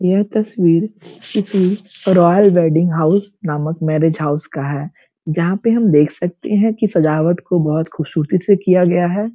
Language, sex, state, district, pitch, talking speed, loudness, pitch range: Hindi, female, Uttar Pradesh, Gorakhpur, 175 Hz, 165 wpm, -16 LUFS, 160-200 Hz